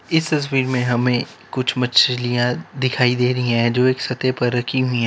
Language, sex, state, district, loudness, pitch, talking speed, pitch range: Hindi, male, Uttar Pradesh, Lalitpur, -19 LUFS, 125 Hz, 200 wpm, 125-130 Hz